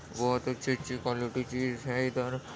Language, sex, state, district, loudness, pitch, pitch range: Hindi, male, Uttar Pradesh, Jyotiba Phule Nagar, -32 LUFS, 125 Hz, 125-130 Hz